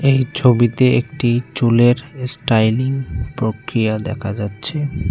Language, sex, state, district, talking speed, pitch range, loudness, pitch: Bengali, male, West Bengal, Cooch Behar, 95 wpm, 110-135 Hz, -17 LUFS, 120 Hz